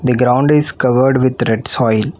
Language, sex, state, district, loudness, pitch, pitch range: English, female, Telangana, Hyderabad, -13 LUFS, 125 Hz, 120-130 Hz